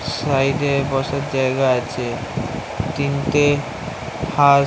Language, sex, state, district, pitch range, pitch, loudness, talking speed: Bengali, male, West Bengal, Kolkata, 130-145 Hz, 140 Hz, -20 LUFS, 105 wpm